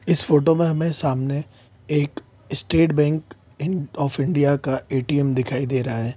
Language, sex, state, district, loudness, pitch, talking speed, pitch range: Hindi, male, Bihar, Saharsa, -22 LUFS, 145 Hz, 165 wpm, 130-155 Hz